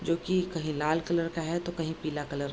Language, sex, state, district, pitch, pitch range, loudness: Hindi, female, Bihar, Darbhanga, 165 Hz, 155-170 Hz, -31 LUFS